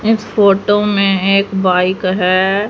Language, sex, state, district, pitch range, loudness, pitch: Hindi, female, Haryana, Rohtak, 185-205 Hz, -13 LUFS, 195 Hz